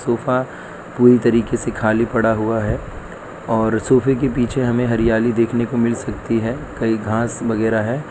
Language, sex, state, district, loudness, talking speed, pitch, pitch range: Hindi, male, Gujarat, Valsad, -18 LUFS, 170 wpm, 115 Hz, 110-120 Hz